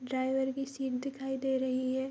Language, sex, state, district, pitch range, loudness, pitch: Hindi, female, Bihar, Vaishali, 260-270 Hz, -33 LUFS, 265 Hz